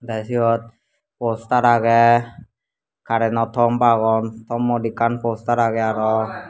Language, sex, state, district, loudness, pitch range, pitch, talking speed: Chakma, male, Tripura, Dhalai, -19 LUFS, 115-120 Hz, 115 Hz, 120 wpm